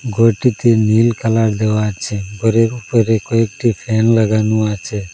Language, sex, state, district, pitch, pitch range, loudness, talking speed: Bengali, male, Assam, Hailakandi, 110 Hz, 105-115 Hz, -15 LUFS, 130 wpm